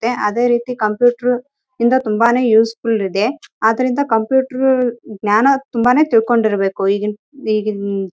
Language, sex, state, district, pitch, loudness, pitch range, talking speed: Kannada, female, Karnataka, Raichur, 235 Hz, -16 LUFS, 215-255 Hz, 105 wpm